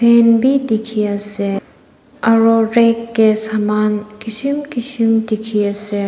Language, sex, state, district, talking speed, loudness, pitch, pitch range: Nagamese, female, Nagaland, Dimapur, 100 wpm, -15 LUFS, 220 Hz, 210-230 Hz